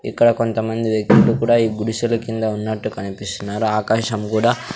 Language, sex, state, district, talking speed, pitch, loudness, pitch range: Telugu, male, Andhra Pradesh, Sri Satya Sai, 140 wpm, 110 Hz, -19 LUFS, 110-115 Hz